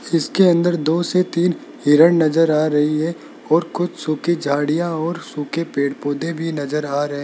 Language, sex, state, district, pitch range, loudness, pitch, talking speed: Hindi, male, Rajasthan, Jaipur, 150-170 Hz, -18 LUFS, 160 Hz, 190 wpm